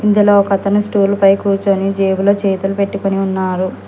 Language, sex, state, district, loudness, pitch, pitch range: Telugu, female, Telangana, Hyderabad, -14 LUFS, 195 Hz, 195-200 Hz